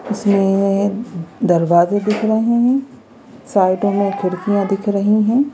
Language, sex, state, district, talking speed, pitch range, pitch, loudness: Hindi, female, Madhya Pradesh, Bhopal, 120 wpm, 195-220 Hz, 205 Hz, -16 LUFS